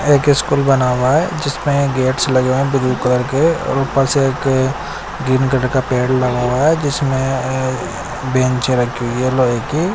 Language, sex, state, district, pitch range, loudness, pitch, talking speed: Hindi, male, Odisha, Nuapada, 130-140 Hz, -16 LUFS, 130 Hz, 195 wpm